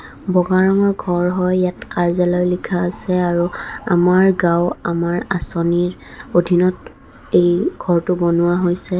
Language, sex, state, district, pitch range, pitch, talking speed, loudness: Assamese, female, Assam, Kamrup Metropolitan, 175-185 Hz, 180 Hz, 115 wpm, -17 LUFS